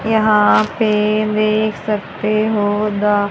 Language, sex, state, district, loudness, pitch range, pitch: Hindi, female, Haryana, Charkhi Dadri, -16 LUFS, 205-215 Hz, 215 Hz